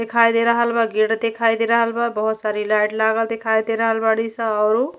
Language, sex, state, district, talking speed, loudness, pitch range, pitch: Bhojpuri, female, Uttar Pradesh, Ghazipur, 240 wpm, -19 LUFS, 220-230 Hz, 225 Hz